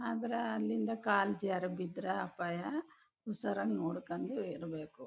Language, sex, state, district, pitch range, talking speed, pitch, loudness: Kannada, female, Karnataka, Chamarajanagar, 180-230 Hz, 105 wpm, 205 Hz, -37 LUFS